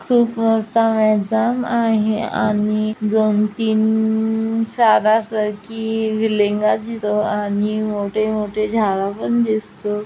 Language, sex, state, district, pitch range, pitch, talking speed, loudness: Marathi, female, Maharashtra, Chandrapur, 210-225 Hz, 215 Hz, 85 wpm, -18 LUFS